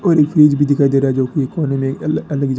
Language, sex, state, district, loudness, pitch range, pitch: Hindi, male, Rajasthan, Bikaner, -15 LUFS, 135-150 Hz, 140 Hz